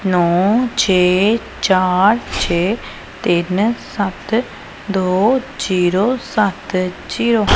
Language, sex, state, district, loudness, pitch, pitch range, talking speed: Punjabi, female, Punjab, Pathankot, -16 LUFS, 195 Hz, 185-225 Hz, 85 wpm